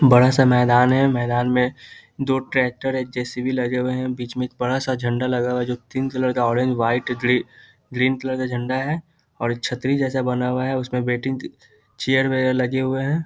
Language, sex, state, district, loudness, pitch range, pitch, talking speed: Hindi, male, Bihar, Muzaffarpur, -21 LUFS, 125-130 Hz, 125 Hz, 215 wpm